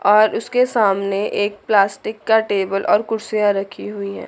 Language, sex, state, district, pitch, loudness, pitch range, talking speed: Hindi, female, Chandigarh, Chandigarh, 205 Hz, -18 LUFS, 200-220 Hz, 170 wpm